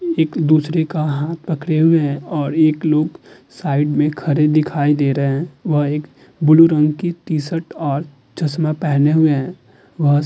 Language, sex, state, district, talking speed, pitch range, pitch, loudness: Hindi, female, Uttar Pradesh, Hamirpur, 170 wpm, 145-160 Hz, 155 Hz, -17 LUFS